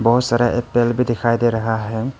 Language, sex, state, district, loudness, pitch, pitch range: Hindi, male, Arunachal Pradesh, Papum Pare, -18 LUFS, 120 Hz, 115-120 Hz